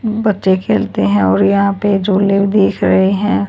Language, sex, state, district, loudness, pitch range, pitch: Hindi, female, Haryana, Charkhi Dadri, -13 LUFS, 185-205 Hz, 200 Hz